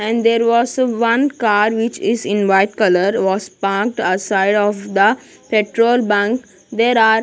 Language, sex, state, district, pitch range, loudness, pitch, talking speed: English, female, Punjab, Kapurthala, 200-230 Hz, -16 LUFS, 220 Hz, 165 wpm